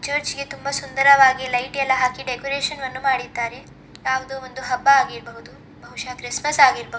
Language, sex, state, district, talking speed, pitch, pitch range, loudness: Kannada, female, Karnataka, Dakshina Kannada, 135 wpm, 265 Hz, 255-275 Hz, -20 LUFS